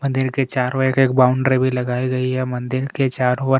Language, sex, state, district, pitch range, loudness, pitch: Hindi, male, Chhattisgarh, Kabirdham, 125-135 Hz, -19 LUFS, 130 Hz